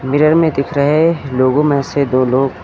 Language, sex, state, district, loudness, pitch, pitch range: Hindi, female, Uttar Pradesh, Lucknow, -14 LUFS, 140 Hz, 130-150 Hz